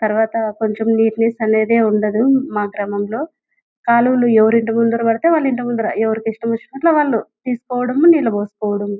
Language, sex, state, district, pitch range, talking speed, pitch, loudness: Telugu, female, Andhra Pradesh, Anantapur, 220-250 Hz, 135 wpm, 230 Hz, -16 LUFS